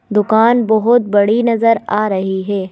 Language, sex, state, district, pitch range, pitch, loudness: Hindi, female, Madhya Pradesh, Bhopal, 205-230 Hz, 215 Hz, -14 LUFS